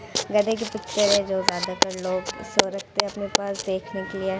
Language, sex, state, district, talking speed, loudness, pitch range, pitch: Hindi, female, Bihar, Muzaffarpur, 230 wpm, -24 LUFS, 190-210 Hz, 195 Hz